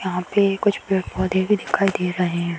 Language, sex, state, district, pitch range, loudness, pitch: Hindi, female, Uttar Pradesh, Hamirpur, 180-200 Hz, -21 LUFS, 185 Hz